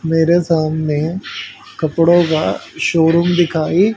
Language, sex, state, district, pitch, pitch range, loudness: Hindi, male, Haryana, Jhajjar, 165 Hz, 155-175 Hz, -15 LUFS